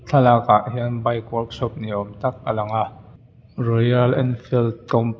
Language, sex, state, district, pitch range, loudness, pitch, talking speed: Mizo, male, Mizoram, Aizawl, 115-125 Hz, -21 LUFS, 120 Hz, 175 wpm